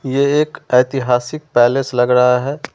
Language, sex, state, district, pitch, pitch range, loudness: Hindi, male, Delhi, New Delhi, 130 Hz, 125-140 Hz, -15 LUFS